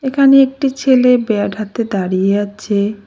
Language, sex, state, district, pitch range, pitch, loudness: Bengali, female, West Bengal, Cooch Behar, 205-265 Hz, 215 Hz, -14 LUFS